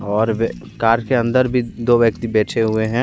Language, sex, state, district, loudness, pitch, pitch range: Hindi, male, Jharkhand, Deoghar, -18 LUFS, 115 Hz, 110-120 Hz